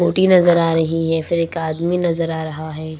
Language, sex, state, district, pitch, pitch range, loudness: Hindi, female, Haryana, Rohtak, 165 Hz, 160-170 Hz, -17 LUFS